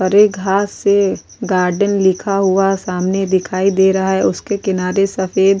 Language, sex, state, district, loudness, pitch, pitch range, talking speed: Hindi, female, Goa, North and South Goa, -15 LUFS, 195 Hz, 190-200 Hz, 160 wpm